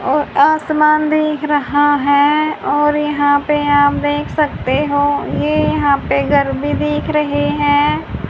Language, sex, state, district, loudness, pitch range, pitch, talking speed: Hindi, female, Haryana, Charkhi Dadri, -14 LUFS, 280-300 Hz, 290 Hz, 145 wpm